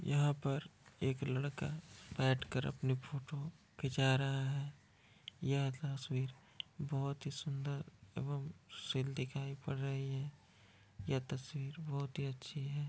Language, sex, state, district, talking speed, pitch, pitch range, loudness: Hindi, male, Bihar, Kishanganj, 125 wpm, 140 Hz, 135-145 Hz, -40 LUFS